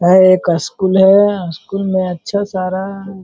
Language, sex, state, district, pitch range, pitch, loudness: Hindi, male, Uttar Pradesh, Hamirpur, 185-195 Hz, 190 Hz, -14 LUFS